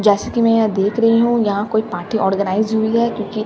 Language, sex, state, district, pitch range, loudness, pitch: Hindi, female, Bihar, Katihar, 205-230 Hz, -17 LUFS, 220 Hz